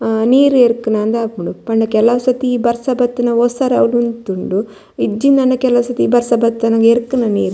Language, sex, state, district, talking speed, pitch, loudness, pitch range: Tulu, female, Karnataka, Dakshina Kannada, 135 wpm, 235 Hz, -14 LUFS, 225-245 Hz